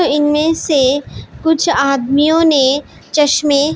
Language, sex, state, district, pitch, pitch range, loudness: Hindi, female, Punjab, Pathankot, 290 Hz, 280-310 Hz, -13 LUFS